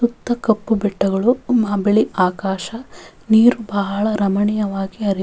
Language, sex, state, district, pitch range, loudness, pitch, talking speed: Kannada, female, Karnataka, Bellary, 195-225 Hz, -18 LUFS, 210 Hz, 115 wpm